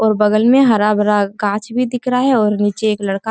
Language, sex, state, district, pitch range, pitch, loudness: Hindi, female, Bihar, Bhagalpur, 210-245 Hz, 215 Hz, -15 LUFS